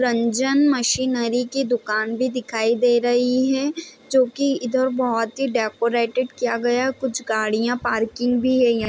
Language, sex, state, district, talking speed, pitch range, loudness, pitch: Hindi, female, Bihar, East Champaran, 175 wpm, 235-260 Hz, -21 LUFS, 245 Hz